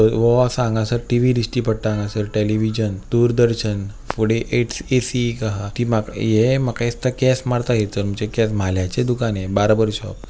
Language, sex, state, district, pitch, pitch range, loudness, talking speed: Konkani, male, Goa, North and South Goa, 110 Hz, 105-120 Hz, -19 LUFS, 175 wpm